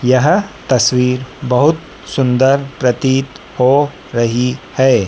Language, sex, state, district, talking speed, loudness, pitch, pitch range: Hindi, female, Madhya Pradesh, Dhar, 95 wpm, -14 LUFS, 130 Hz, 125-140 Hz